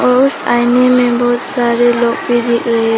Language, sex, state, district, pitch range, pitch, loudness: Hindi, female, Arunachal Pradesh, Papum Pare, 235-250 Hz, 240 Hz, -12 LUFS